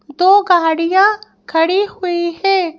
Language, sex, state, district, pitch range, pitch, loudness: Hindi, female, Madhya Pradesh, Bhopal, 335-390 Hz, 360 Hz, -14 LUFS